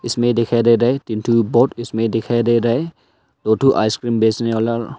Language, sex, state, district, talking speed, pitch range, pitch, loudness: Hindi, male, Arunachal Pradesh, Longding, 215 wpm, 115-120 Hz, 115 Hz, -17 LUFS